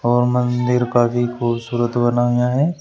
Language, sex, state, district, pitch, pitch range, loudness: Hindi, male, Uttar Pradesh, Shamli, 120 Hz, 120-125 Hz, -18 LUFS